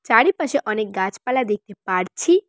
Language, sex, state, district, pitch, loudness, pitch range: Bengali, female, West Bengal, Cooch Behar, 215 Hz, -21 LUFS, 195-285 Hz